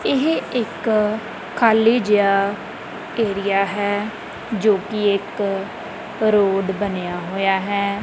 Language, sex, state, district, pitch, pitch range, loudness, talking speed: Punjabi, male, Punjab, Kapurthala, 205 Hz, 195-220 Hz, -20 LUFS, 95 wpm